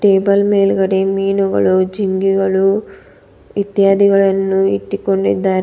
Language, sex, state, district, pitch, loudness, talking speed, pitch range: Kannada, female, Karnataka, Bidar, 195 Hz, -14 LUFS, 65 wpm, 190-195 Hz